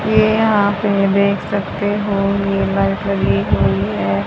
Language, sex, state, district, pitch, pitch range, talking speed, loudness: Hindi, female, Haryana, Jhajjar, 200 Hz, 195-205 Hz, 140 wpm, -16 LUFS